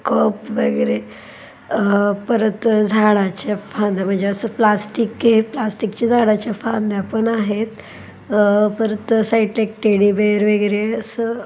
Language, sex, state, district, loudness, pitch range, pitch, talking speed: Marathi, female, Maharashtra, Dhule, -18 LUFS, 205-225 Hz, 215 Hz, 130 wpm